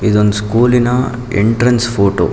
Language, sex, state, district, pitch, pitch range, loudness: Kannada, male, Karnataka, Mysore, 115 Hz, 105-125 Hz, -13 LUFS